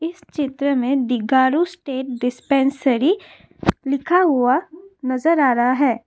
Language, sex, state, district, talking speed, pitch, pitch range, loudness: Hindi, female, Assam, Kamrup Metropolitan, 120 wpm, 275 Hz, 255-315 Hz, -19 LUFS